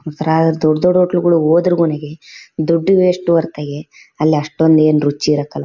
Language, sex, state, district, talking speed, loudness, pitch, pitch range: Kannada, female, Karnataka, Bellary, 170 wpm, -14 LUFS, 160 Hz, 150-170 Hz